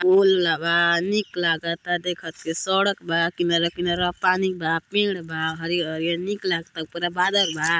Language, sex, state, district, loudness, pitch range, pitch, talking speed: Hindi, female, Uttar Pradesh, Gorakhpur, -22 LUFS, 165-185 Hz, 175 Hz, 170 wpm